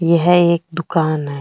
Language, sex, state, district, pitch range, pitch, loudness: Rajasthani, female, Rajasthan, Nagaur, 155-170 Hz, 170 Hz, -16 LUFS